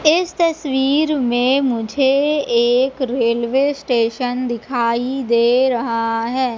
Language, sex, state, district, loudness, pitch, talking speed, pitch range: Hindi, female, Madhya Pradesh, Katni, -17 LUFS, 255 Hz, 100 wpm, 235-275 Hz